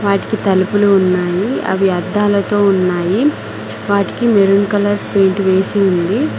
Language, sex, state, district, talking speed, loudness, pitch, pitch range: Telugu, female, Telangana, Mahabubabad, 110 wpm, -14 LUFS, 200 Hz, 190-205 Hz